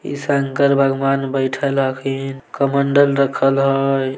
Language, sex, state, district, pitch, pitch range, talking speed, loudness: Maithili, male, Bihar, Samastipur, 135 Hz, 135-140 Hz, 115 wpm, -17 LUFS